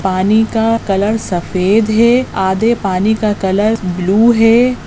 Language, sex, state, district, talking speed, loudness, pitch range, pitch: Hindi, female, Goa, North and South Goa, 135 wpm, -13 LUFS, 190-225 Hz, 215 Hz